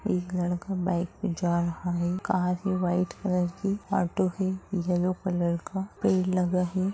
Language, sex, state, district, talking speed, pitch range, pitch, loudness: Hindi, female, Chhattisgarh, Rajnandgaon, 175 wpm, 175-190 Hz, 180 Hz, -28 LUFS